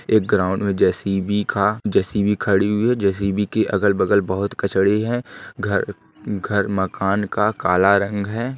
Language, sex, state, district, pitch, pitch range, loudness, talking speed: Hindi, male, Uttar Pradesh, Ghazipur, 100 Hz, 95-105 Hz, -20 LUFS, 155 wpm